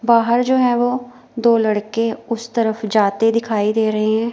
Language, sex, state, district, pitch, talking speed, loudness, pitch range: Hindi, female, Himachal Pradesh, Shimla, 230 Hz, 180 wpm, -17 LUFS, 220-235 Hz